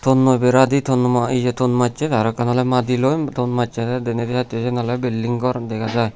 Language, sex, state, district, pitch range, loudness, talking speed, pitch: Chakma, male, Tripura, Unakoti, 120-125 Hz, -19 LUFS, 185 wpm, 125 Hz